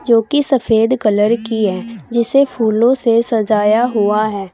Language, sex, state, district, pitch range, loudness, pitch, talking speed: Hindi, female, Uttar Pradesh, Saharanpur, 215-240 Hz, -14 LUFS, 225 Hz, 160 wpm